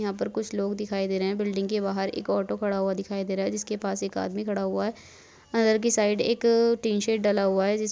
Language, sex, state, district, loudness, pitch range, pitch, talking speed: Hindi, female, Chhattisgarh, Korba, -26 LUFS, 195-215 Hz, 205 Hz, 260 wpm